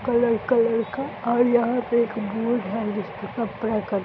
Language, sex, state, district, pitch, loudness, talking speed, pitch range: Hindi, female, Bihar, Araria, 230 Hz, -23 LUFS, 195 wpm, 215-240 Hz